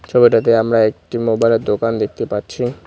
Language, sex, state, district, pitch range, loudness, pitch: Bengali, male, West Bengal, Cooch Behar, 110-120 Hz, -16 LUFS, 115 Hz